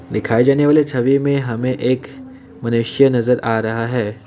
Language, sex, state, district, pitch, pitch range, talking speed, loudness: Hindi, male, Assam, Kamrup Metropolitan, 125 Hz, 115-135 Hz, 185 wpm, -17 LUFS